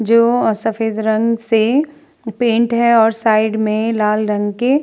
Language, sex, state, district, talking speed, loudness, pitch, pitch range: Hindi, female, Uttar Pradesh, Muzaffarnagar, 160 wpm, -15 LUFS, 225 Hz, 220-235 Hz